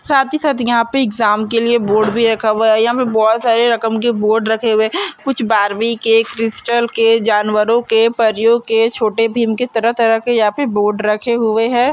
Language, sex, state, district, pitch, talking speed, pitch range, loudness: Hindi, female, Maharashtra, Pune, 225 Hz, 215 wpm, 220-235 Hz, -14 LUFS